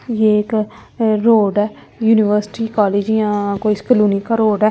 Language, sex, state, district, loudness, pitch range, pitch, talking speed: Hindi, female, Delhi, New Delhi, -16 LUFS, 210-225 Hz, 215 Hz, 155 wpm